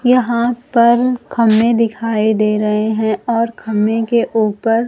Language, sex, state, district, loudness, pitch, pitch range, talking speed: Hindi, female, Bihar, Kaimur, -15 LUFS, 230 Hz, 215-235 Hz, 135 wpm